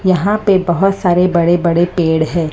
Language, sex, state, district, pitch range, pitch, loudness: Hindi, female, Maharashtra, Mumbai Suburban, 170-190 Hz, 175 Hz, -13 LUFS